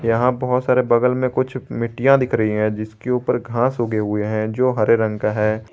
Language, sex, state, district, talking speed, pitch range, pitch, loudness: Hindi, male, Jharkhand, Garhwa, 220 wpm, 110-125 Hz, 120 Hz, -19 LUFS